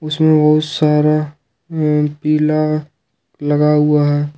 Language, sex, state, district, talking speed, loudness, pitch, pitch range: Hindi, male, Jharkhand, Ranchi, 95 wpm, -15 LUFS, 150 Hz, 150-155 Hz